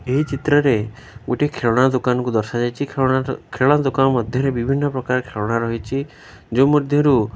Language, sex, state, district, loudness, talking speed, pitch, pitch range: Odia, male, Odisha, Khordha, -19 LUFS, 155 wpm, 130 Hz, 120-140 Hz